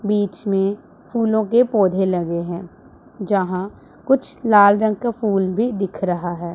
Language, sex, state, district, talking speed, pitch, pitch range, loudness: Hindi, female, Punjab, Pathankot, 155 wpm, 200 Hz, 185-220 Hz, -19 LUFS